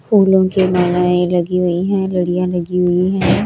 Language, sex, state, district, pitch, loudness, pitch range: Hindi, male, Chandigarh, Chandigarh, 180 Hz, -15 LUFS, 180-190 Hz